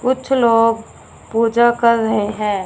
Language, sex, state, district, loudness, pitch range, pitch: Hindi, female, Punjab, Fazilka, -16 LUFS, 220-240 Hz, 230 Hz